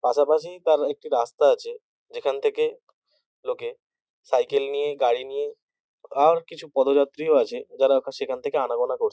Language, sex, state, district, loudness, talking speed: Bengali, male, West Bengal, North 24 Parganas, -24 LUFS, 145 wpm